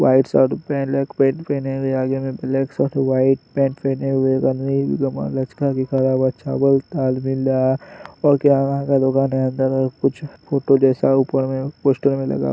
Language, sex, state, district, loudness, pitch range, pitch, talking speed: Hindi, male, Bihar, Araria, -19 LUFS, 130-135 Hz, 135 Hz, 120 wpm